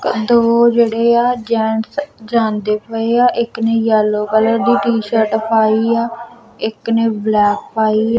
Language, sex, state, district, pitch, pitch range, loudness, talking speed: Punjabi, female, Punjab, Kapurthala, 225 Hz, 220-235 Hz, -15 LUFS, 145 wpm